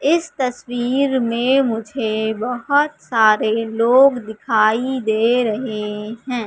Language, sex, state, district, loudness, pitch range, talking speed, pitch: Hindi, female, Madhya Pradesh, Katni, -18 LUFS, 220-260 Hz, 100 wpm, 235 Hz